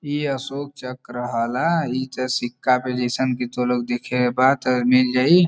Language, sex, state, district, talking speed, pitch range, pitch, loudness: Bhojpuri, male, Uttar Pradesh, Varanasi, 175 wpm, 125-135 Hz, 125 Hz, -21 LUFS